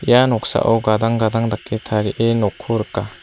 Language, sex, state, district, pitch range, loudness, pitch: Garo, female, Meghalaya, South Garo Hills, 110-115 Hz, -18 LUFS, 110 Hz